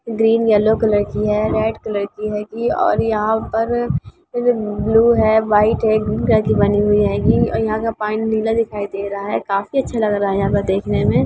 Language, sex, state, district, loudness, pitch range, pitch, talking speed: Hindi, female, Bihar, Gopalganj, -17 LUFS, 210-225 Hz, 215 Hz, 215 wpm